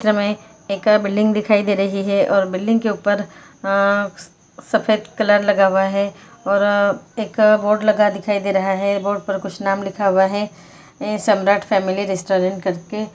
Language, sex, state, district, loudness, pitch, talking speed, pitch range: Hindi, female, Uttarakhand, Uttarkashi, -18 LUFS, 200 Hz, 185 wpm, 195-210 Hz